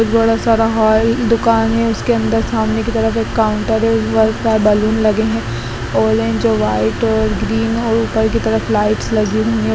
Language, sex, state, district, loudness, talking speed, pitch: Hindi, female, Bihar, Gaya, -15 LUFS, 190 wpm, 220 Hz